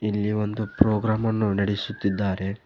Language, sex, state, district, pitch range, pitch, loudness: Kannada, male, Karnataka, Koppal, 100-110 Hz, 105 Hz, -24 LUFS